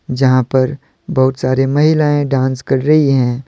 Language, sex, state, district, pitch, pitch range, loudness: Hindi, male, Jharkhand, Deoghar, 135 Hz, 130-145 Hz, -14 LUFS